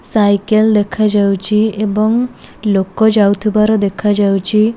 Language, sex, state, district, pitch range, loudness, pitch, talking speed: Odia, female, Odisha, Malkangiri, 200-215 Hz, -13 LUFS, 210 Hz, 90 wpm